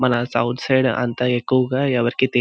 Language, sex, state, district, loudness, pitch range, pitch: Telugu, male, Andhra Pradesh, Visakhapatnam, -19 LUFS, 120-130 Hz, 125 Hz